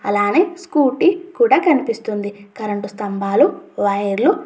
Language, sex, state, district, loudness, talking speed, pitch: Telugu, female, Andhra Pradesh, Chittoor, -17 LUFS, 120 wpm, 220 Hz